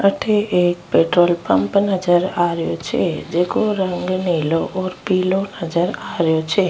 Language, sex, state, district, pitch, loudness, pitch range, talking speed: Rajasthani, female, Rajasthan, Nagaur, 175 Hz, -18 LUFS, 170-190 Hz, 150 wpm